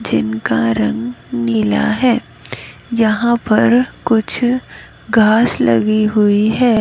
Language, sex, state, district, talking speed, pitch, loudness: Hindi, female, Haryana, Jhajjar, 95 wpm, 215 Hz, -15 LUFS